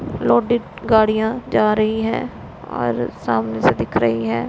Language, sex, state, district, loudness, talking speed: Hindi, female, Punjab, Pathankot, -19 LUFS, 145 wpm